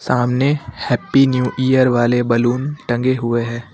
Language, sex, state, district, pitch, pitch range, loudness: Hindi, male, Uttar Pradesh, Lucknow, 125 Hz, 120-130 Hz, -17 LUFS